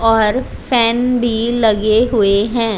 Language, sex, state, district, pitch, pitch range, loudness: Hindi, female, Haryana, Charkhi Dadri, 225 Hz, 215-240 Hz, -14 LUFS